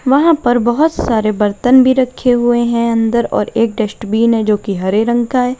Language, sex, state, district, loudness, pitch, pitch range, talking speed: Hindi, female, Uttar Pradesh, Lalitpur, -13 LUFS, 235 Hz, 220-250 Hz, 205 wpm